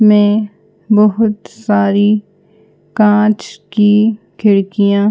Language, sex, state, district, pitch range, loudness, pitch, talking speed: Hindi, female, Madhya Pradesh, Bhopal, 205-215 Hz, -13 LUFS, 210 Hz, 70 wpm